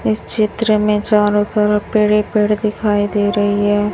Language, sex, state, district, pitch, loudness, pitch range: Hindi, female, Chhattisgarh, Raipur, 210 Hz, -15 LUFS, 205-215 Hz